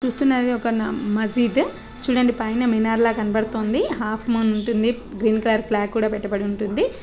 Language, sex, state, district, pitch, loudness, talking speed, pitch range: Telugu, female, Andhra Pradesh, Krishna, 225 Hz, -21 LUFS, 155 wpm, 215-245 Hz